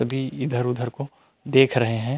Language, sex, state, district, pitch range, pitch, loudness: Chhattisgarhi, male, Chhattisgarh, Rajnandgaon, 125-135 Hz, 130 Hz, -22 LUFS